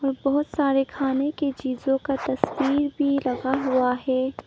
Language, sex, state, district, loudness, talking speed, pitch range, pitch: Hindi, female, Arunachal Pradesh, Papum Pare, -24 LUFS, 145 wpm, 260-285 Hz, 270 Hz